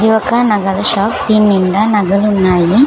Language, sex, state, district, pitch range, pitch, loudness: Telugu, female, Telangana, Hyderabad, 195-220 Hz, 210 Hz, -12 LUFS